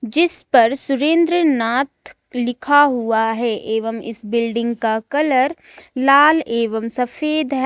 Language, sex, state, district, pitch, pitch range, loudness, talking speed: Hindi, female, Jharkhand, Ranchi, 250 Hz, 230-290 Hz, -17 LUFS, 120 wpm